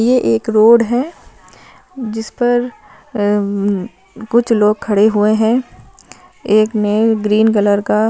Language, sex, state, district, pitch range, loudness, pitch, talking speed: Hindi, female, Punjab, Fazilka, 205-230 Hz, -14 LUFS, 215 Hz, 120 wpm